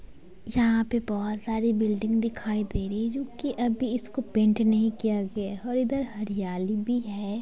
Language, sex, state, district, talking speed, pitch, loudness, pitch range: Hindi, female, Bihar, Sitamarhi, 185 wpm, 220 Hz, -27 LUFS, 210-240 Hz